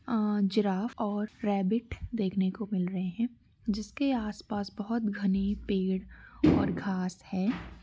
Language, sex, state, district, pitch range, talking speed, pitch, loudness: Hindi, female, Jharkhand, Jamtara, 195-220 Hz, 130 wpm, 205 Hz, -31 LUFS